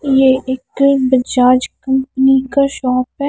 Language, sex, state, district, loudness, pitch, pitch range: Hindi, female, Himachal Pradesh, Shimla, -14 LUFS, 265 Hz, 260-275 Hz